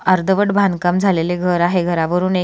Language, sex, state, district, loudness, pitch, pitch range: Marathi, female, Maharashtra, Solapur, -16 LUFS, 180 Hz, 175-190 Hz